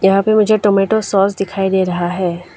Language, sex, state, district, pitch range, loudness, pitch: Hindi, female, Arunachal Pradesh, Lower Dibang Valley, 185-205 Hz, -15 LUFS, 195 Hz